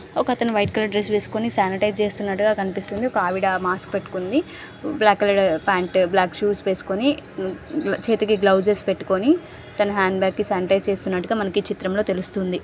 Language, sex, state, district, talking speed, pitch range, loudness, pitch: Telugu, female, Andhra Pradesh, Srikakulam, 145 wpm, 190-210 Hz, -21 LUFS, 200 Hz